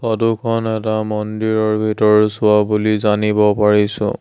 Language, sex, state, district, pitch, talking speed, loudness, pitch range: Assamese, male, Assam, Sonitpur, 105 Hz, 115 wpm, -16 LUFS, 105-110 Hz